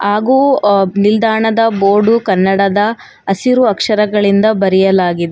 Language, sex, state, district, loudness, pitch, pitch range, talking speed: Kannada, female, Karnataka, Bangalore, -12 LUFS, 205 Hz, 195-225 Hz, 90 wpm